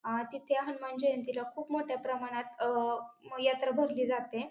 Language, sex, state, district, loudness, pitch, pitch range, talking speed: Marathi, female, Maharashtra, Pune, -34 LUFS, 255 Hz, 240-275 Hz, 160 wpm